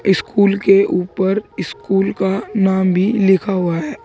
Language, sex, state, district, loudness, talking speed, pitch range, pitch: Hindi, male, Uttar Pradesh, Saharanpur, -16 LUFS, 150 wpm, 190-200 Hz, 195 Hz